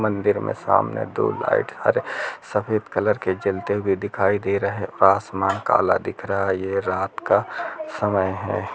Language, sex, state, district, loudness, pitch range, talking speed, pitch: Hindi, male, Chhattisgarh, Rajnandgaon, -22 LUFS, 95-105 Hz, 170 wpm, 100 Hz